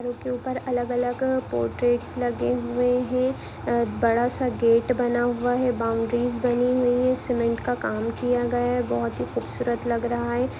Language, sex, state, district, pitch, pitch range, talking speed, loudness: Hindi, female, Maharashtra, Pune, 245 Hz, 235-250 Hz, 175 wpm, -24 LUFS